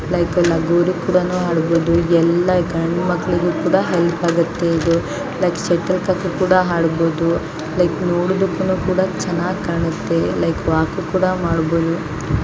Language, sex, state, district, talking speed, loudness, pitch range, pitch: Kannada, female, Karnataka, Mysore, 90 wpm, -18 LUFS, 165-180 Hz, 175 Hz